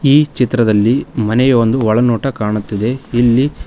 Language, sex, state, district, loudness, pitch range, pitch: Kannada, male, Karnataka, Koppal, -14 LUFS, 110-130 Hz, 120 Hz